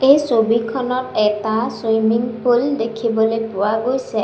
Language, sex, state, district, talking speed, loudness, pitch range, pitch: Assamese, female, Assam, Sonitpur, 115 wpm, -18 LUFS, 220-250 Hz, 230 Hz